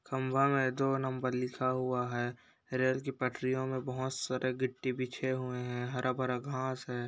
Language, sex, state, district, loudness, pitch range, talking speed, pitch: Hindi, male, Bihar, Jamui, -34 LUFS, 125-130 Hz, 185 wpm, 130 Hz